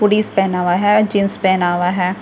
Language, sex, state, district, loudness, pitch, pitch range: Hindi, female, Delhi, New Delhi, -16 LUFS, 195 Hz, 180-205 Hz